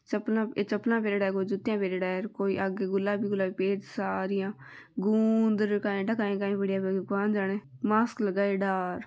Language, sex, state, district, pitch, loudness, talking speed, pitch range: Marwari, female, Rajasthan, Nagaur, 200 Hz, -29 LUFS, 185 wpm, 195-210 Hz